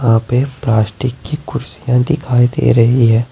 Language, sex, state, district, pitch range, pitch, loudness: Hindi, male, Jharkhand, Ranchi, 115-130 Hz, 125 Hz, -14 LUFS